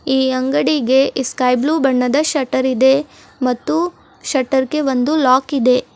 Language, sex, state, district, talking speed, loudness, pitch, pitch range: Kannada, female, Karnataka, Bidar, 140 wpm, -16 LUFS, 265 Hz, 255-285 Hz